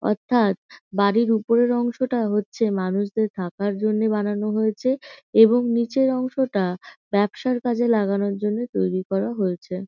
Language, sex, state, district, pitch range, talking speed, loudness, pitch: Bengali, female, West Bengal, North 24 Parganas, 200-240 Hz, 120 wpm, -22 LUFS, 215 Hz